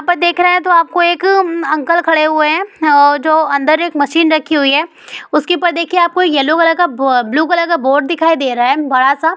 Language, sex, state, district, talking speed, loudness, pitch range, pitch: Hindi, female, West Bengal, Purulia, 225 wpm, -12 LUFS, 295-345 Hz, 325 Hz